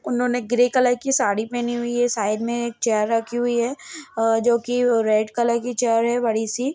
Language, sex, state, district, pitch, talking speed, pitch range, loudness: Hindi, female, Bihar, Gaya, 240 Hz, 215 wpm, 225-245 Hz, -21 LUFS